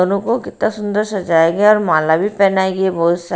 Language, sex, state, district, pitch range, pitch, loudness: Hindi, female, Bihar, Patna, 175-210 Hz, 195 Hz, -15 LUFS